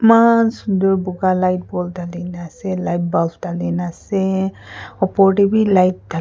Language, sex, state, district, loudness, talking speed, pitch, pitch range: Nagamese, female, Nagaland, Kohima, -17 LUFS, 175 wpm, 185 Hz, 175-195 Hz